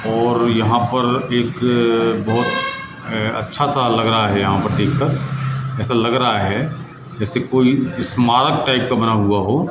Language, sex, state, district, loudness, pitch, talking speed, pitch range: Hindi, male, Madhya Pradesh, Katni, -17 LUFS, 120 Hz, 185 wpm, 115-135 Hz